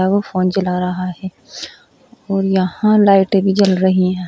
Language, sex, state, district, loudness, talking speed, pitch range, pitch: Hindi, female, Uttar Pradesh, Shamli, -15 LUFS, 180 wpm, 185-200 Hz, 190 Hz